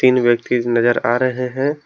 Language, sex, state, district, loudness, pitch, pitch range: Hindi, male, Jharkhand, Palamu, -17 LUFS, 125 Hz, 120-130 Hz